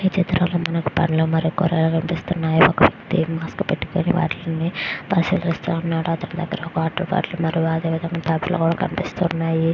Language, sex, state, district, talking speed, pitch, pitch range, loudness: Telugu, female, Andhra Pradesh, Visakhapatnam, 80 wpm, 165 Hz, 165-175 Hz, -21 LUFS